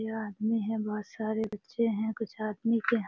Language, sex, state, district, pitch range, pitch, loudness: Hindi, female, Bihar, Jamui, 215-225 Hz, 220 Hz, -32 LUFS